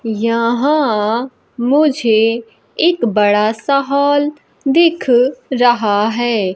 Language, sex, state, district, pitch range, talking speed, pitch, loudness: Hindi, female, Bihar, Kaimur, 225-280 Hz, 80 wpm, 240 Hz, -14 LUFS